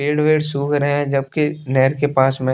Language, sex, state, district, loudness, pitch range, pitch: Hindi, male, Bihar, West Champaran, -18 LUFS, 135-150 Hz, 145 Hz